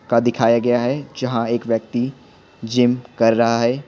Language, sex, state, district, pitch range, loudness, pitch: Hindi, male, Bihar, Patna, 115-125 Hz, -19 LUFS, 120 Hz